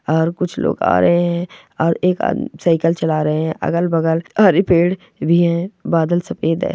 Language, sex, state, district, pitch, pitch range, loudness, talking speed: Hindi, female, Rajasthan, Churu, 170 Hz, 165-175 Hz, -17 LUFS, 195 wpm